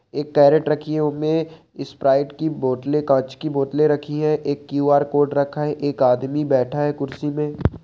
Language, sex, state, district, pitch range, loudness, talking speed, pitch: Hindi, male, Chhattisgarh, Balrampur, 140-150 Hz, -20 LUFS, 190 wpm, 145 Hz